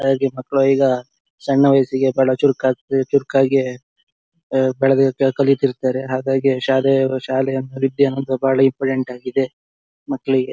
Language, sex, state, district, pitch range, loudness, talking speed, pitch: Kannada, male, Karnataka, Shimoga, 130-135 Hz, -18 LUFS, 120 wpm, 135 Hz